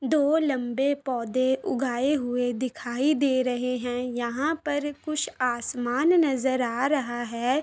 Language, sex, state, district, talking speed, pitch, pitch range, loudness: Hindi, female, Bihar, Darbhanga, 135 wpm, 260 Hz, 245-290 Hz, -26 LUFS